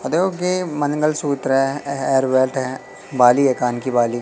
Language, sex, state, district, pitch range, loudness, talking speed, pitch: Hindi, male, Madhya Pradesh, Katni, 130-150 Hz, -19 LUFS, 140 wpm, 135 Hz